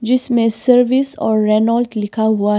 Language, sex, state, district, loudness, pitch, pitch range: Hindi, female, Arunachal Pradesh, Papum Pare, -15 LUFS, 225 Hz, 215-245 Hz